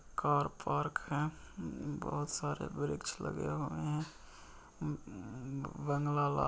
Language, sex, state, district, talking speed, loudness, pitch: Hindi, male, Bihar, Saran, 95 wpm, -38 LUFS, 140 Hz